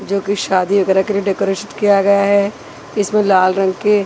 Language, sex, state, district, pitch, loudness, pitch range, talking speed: Hindi, female, Chhattisgarh, Raipur, 200 Hz, -15 LUFS, 195-200 Hz, 205 wpm